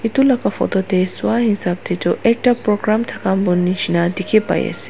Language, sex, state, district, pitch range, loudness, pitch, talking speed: Nagamese, female, Nagaland, Dimapur, 185-230 Hz, -17 LUFS, 205 Hz, 195 wpm